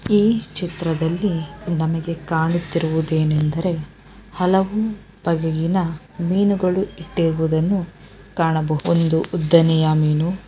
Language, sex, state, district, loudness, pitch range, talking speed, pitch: Kannada, female, Karnataka, Dharwad, -20 LUFS, 160-185 Hz, 70 wpm, 170 Hz